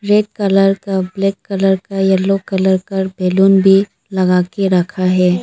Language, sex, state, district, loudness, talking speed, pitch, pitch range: Hindi, female, Arunachal Pradesh, Lower Dibang Valley, -14 LUFS, 165 wpm, 195 Hz, 185-195 Hz